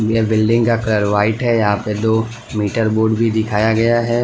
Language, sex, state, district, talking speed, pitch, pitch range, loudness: Hindi, male, Gujarat, Valsad, 210 wpm, 110 Hz, 105-115 Hz, -16 LUFS